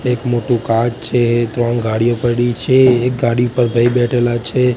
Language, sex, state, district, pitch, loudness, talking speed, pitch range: Gujarati, male, Gujarat, Gandhinagar, 120 Hz, -15 LUFS, 175 wpm, 120-125 Hz